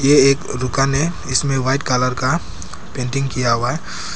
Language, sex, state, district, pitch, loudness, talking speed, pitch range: Hindi, male, Arunachal Pradesh, Papum Pare, 130 Hz, -18 LUFS, 175 wpm, 125-135 Hz